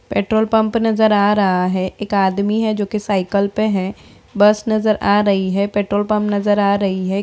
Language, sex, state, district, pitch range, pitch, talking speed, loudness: Hindi, female, Bihar, Begusarai, 195-215 Hz, 205 Hz, 205 wpm, -17 LUFS